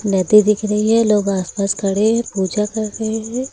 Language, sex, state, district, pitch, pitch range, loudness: Hindi, female, Uttar Pradesh, Lucknow, 210 Hz, 200-220 Hz, -17 LUFS